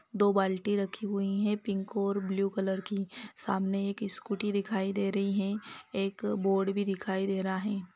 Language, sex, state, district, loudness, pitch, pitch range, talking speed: Hindi, female, Chhattisgarh, Bilaspur, -32 LUFS, 200 Hz, 195-205 Hz, 180 wpm